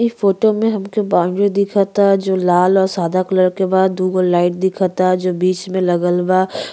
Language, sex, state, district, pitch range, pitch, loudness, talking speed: Bhojpuri, female, Uttar Pradesh, Ghazipur, 185-195 Hz, 190 Hz, -16 LUFS, 185 wpm